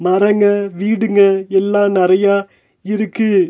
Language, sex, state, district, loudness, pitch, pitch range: Tamil, male, Tamil Nadu, Nilgiris, -14 LUFS, 200 Hz, 190-205 Hz